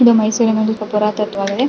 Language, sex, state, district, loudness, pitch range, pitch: Kannada, female, Karnataka, Mysore, -16 LUFS, 210-225 Hz, 215 Hz